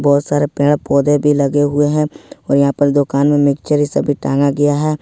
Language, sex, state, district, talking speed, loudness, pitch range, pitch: Hindi, male, Jharkhand, Ranchi, 215 wpm, -14 LUFS, 140-145 Hz, 145 Hz